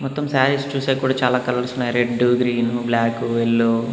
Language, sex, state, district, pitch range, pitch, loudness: Telugu, male, Andhra Pradesh, Annamaya, 115-130 Hz, 125 Hz, -19 LUFS